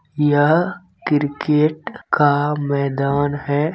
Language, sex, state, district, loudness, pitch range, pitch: Hindi, male, Bihar, Begusarai, -18 LUFS, 145-155 Hz, 145 Hz